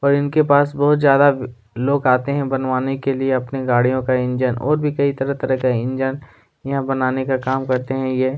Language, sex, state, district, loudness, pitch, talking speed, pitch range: Hindi, male, Chhattisgarh, Kabirdham, -18 LUFS, 135 Hz, 220 wpm, 130-140 Hz